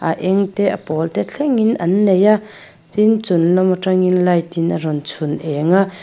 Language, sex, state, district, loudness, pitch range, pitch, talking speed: Mizo, female, Mizoram, Aizawl, -16 LUFS, 165-200 Hz, 185 Hz, 210 wpm